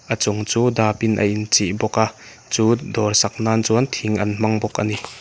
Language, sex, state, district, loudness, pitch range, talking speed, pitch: Mizo, male, Mizoram, Aizawl, -19 LUFS, 105-110 Hz, 230 wpm, 110 Hz